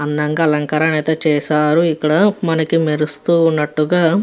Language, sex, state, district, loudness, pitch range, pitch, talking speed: Telugu, female, Andhra Pradesh, Guntur, -16 LUFS, 150-165 Hz, 155 Hz, 130 wpm